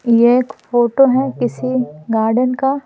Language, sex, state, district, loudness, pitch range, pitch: Hindi, female, Bihar, Patna, -15 LUFS, 235-255 Hz, 250 Hz